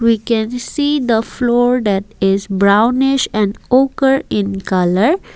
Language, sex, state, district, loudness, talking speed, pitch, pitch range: English, female, Assam, Kamrup Metropolitan, -15 LUFS, 135 wpm, 230 Hz, 200-255 Hz